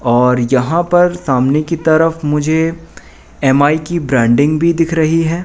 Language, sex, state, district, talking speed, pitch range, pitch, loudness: Hindi, male, Madhya Pradesh, Katni, 155 wpm, 135-165 Hz, 155 Hz, -13 LUFS